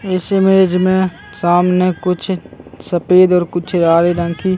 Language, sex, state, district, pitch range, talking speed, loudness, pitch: Hindi, male, Chhattisgarh, Bastar, 175-185 Hz, 155 wpm, -14 LUFS, 180 Hz